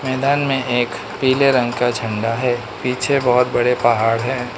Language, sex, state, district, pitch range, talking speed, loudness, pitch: Hindi, male, Manipur, Imphal West, 120-130 Hz, 170 wpm, -18 LUFS, 125 Hz